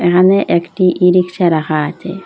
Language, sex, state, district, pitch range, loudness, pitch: Bengali, female, Assam, Hailakandi, 170-185 Hz, -13 LUFS, 180 Hz